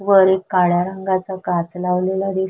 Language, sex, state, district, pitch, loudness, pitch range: Marathi, female, Maharashtra, Sindhudurg, 190 Hz, -18 LUFS, 180-190 Hz